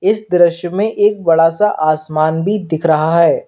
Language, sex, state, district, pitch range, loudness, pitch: Hindi, male, Uttar Pradesh, Lalitpur, 160-205 Hz, -14 LUFS, 170 Hz